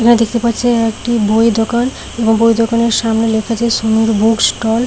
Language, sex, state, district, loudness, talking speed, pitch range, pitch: Bengali, female, West Bengal, Paschim Medinipur, -13 LUFS, 195 wpm, 225-235 Hz, 230 Hz